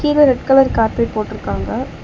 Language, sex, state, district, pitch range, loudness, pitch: Tamil, female, Tamil Nadu, Chennai, 225-280 Hz, -16 LUFS, 260 Hz